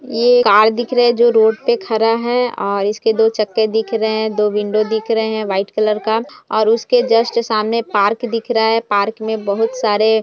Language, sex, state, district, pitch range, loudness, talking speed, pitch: Hindi, female, Bihar, Jamui, 215-230 Hz, -15 LUFS, 225 wpm, 220 Hz